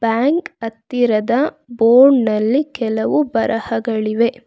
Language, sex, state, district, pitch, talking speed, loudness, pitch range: Kannada, female, Karnataka, Bangalore, 235 Hz, 80 wpm, -16 LUFS, 225-265 Hz